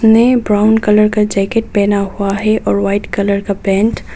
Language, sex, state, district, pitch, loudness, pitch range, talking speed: Hindi, female, Nagaland, Kohima, 210 Hz, -13 LUFS, 200-220 Hz, 200 wpm